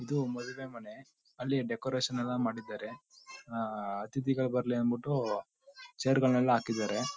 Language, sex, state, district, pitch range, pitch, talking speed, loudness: Kannada, male, Karnataka, Mysore, 115-135 Hz, 125 Hz, 125 wpm, -33 LUFS